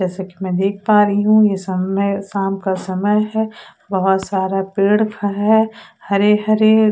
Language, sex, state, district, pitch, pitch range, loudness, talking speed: Hindi, female, Odisha, Sambalpur, 200 Hz, 190-215 Hz, -17 LUFS, 165 wpm